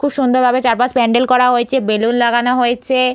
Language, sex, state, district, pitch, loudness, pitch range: Bengali, female, West Bengal, Purulia, 250 Hz, -14 LUFS, 240-255 Hz